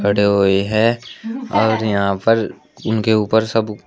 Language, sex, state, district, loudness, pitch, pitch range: Hindi, male, Uttar Pradesh, Shamli, -17 LUFS, 110 Hz, 100-115 Hz